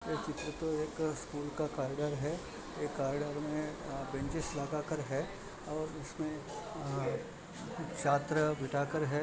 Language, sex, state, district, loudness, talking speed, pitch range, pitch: Hindi, male, Maharashtra, Chandrapur, -37 LUFS, 150 wpm, 145-160 Hz, 150 Hz